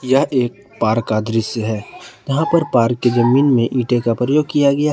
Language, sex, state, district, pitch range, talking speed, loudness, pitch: Hindi, male, Jharkhand, Ranchi, 115-140 Hz, 220 wpm, -17 LUFS, 125 Hz